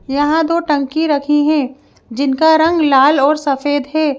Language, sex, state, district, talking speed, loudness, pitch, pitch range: Hindi, female, Madhya Pradesh, Bhopal, 160 wpm, -14 LUFS, 295 Hz, 280-315 Hz